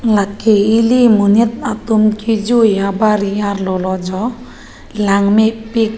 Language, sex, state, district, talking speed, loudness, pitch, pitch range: Karbi, female, Assam, Karbi Anglong, 90 wpm, -14 LUFS, 215 Hz, 200-225 Hz